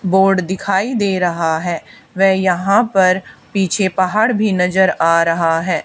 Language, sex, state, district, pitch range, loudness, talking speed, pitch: Hindi, female, Haryana, Charkhi Dadri, 180-195 Hz, -15 LUFS, 155 wpm, 190 Hz